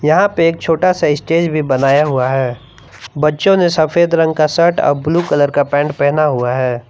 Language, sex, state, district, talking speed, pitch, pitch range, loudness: Hindi, male, Jharkhand, Palamu, 210 wpm, 150 Hz, 135-165 Hz, -14 LUFS